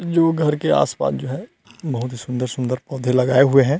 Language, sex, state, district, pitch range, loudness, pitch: Hindi, male, Chhattisgarh, Rajnandgaon, 125-150 Hz, -19 LUFS, 135 Hz